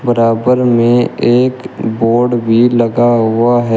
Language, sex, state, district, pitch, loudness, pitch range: Hindi, male, Uttar Pradesh, Shamli, 120 Hz, -12 LUFS, 115-120 Hz